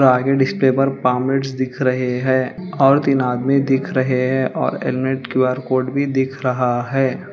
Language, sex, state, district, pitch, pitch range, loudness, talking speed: Hindi, female, Telangana, Hyderabad, 130 Hz, 130-135 Hz, -18 LUFS, 170 wpm